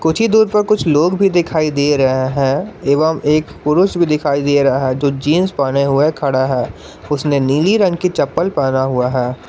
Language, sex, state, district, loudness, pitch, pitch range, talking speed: Hindi, male, Jharkhand, Garhwa, -15 LUFS, 145 Hz, 135-175 Hz, 195 wpm